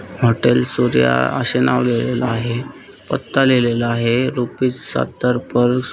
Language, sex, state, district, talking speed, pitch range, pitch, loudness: Marathi, male, Maharashtra, Solapur, 130 wpm, 80-125 Hz, 120 Hz, -17 LUFS